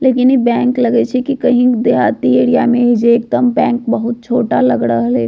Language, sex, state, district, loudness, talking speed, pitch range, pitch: Bajjika, female, Bihar, Vaishali, -13 LUFS, 195 wpm, 235-250 Hz, 240 Hz